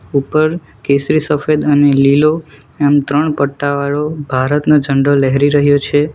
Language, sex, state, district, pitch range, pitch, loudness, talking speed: Gujarati, male, Gujarat, Valsad, 140-150 Hz, 145 Hz, -13 LUFS, 125 wpm